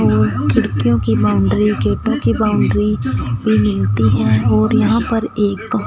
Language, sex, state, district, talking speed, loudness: Hindi, female, Punjab, Fazilka, 135 wpm, -15 LUFS